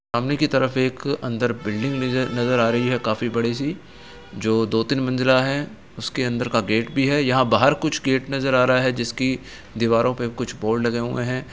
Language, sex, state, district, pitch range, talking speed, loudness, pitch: Hindi, male, Uttar Pradesh, Etah, 115-130 Hz, 215 wpm, -21 LUFS, 125 Hz